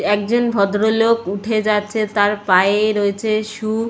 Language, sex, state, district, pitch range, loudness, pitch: Bengali, female, West Bengal, Jalpaiguri, 205-220 Hz, -17 LUFS, 215 Hz